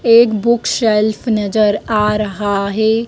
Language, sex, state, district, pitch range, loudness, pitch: Hindi, female, Madhya Pradesh, Dhar, 210-230 Hz, -15 LUFS, 215 Hz